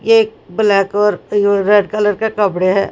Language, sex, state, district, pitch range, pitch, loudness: Hindi, female, Haryana, Rohtak, 195-210 Hz, 205 Hz, -14 LUFS